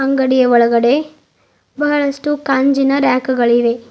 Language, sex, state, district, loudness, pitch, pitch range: Kannada, female, Karnataka, Bidar, -14 LUFS, 265 Hz, 240-280 Hz